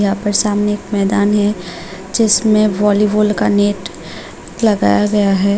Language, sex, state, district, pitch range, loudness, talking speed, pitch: Hindi, female, Tripura, Unakoti, 195-210 Hz, -14 LUFS, 140 wpm, 205 Hz